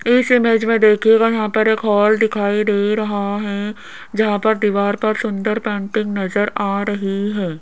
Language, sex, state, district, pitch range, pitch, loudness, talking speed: Hindi, female, Rajasthan, Jaipur, 205-220 Hz, 210 Hz, -17 LUFS, 175 wpm